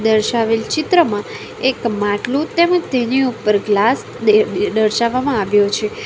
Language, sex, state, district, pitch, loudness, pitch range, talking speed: Gujarati, female, Gujarat, Valsad, 235 Hz, -16 LUFS, 215-280 Hz, 120 wpm